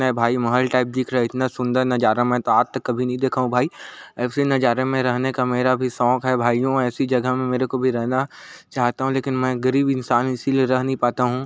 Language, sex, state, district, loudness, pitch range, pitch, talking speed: Hindi, male, Chhattisgarh, Korba, -21 LUFS, 125-130 Hz, 130 Hz, 245 wpm